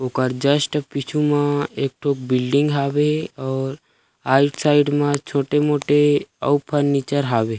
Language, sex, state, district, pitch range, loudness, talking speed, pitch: Chhattisgarhi, male, Chhattisgarh, Rajnandgaon, 135-145 Hz, -20 LUFS, 125 wpm, 145 Hz